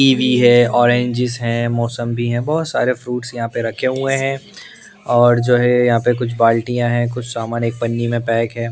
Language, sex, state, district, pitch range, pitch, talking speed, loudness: Hindi, male, Punjab, Pathankot, 115-125 Hz, 120 Hz, 215 wpm, -17 LUFS